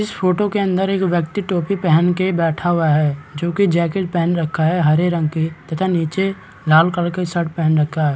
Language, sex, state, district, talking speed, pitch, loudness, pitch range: Hindi, male, Chhattisgarh, Balrampur, 220 wpm, 170 Hz, -18 LUFS, 160-185 Hz